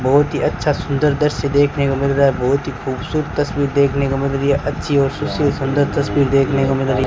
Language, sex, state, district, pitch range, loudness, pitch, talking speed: Hindi, male, Rajasthan, Bikaner, 135-145 Hz, -17 LUFS, 140 Hz, 245 wpm